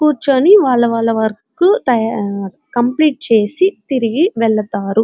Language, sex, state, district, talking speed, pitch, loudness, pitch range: Telugu, female, Andhra Pradesh, Chittoor, 95 wpm, 240 Hz, -14 LUFS, 220-300 Hz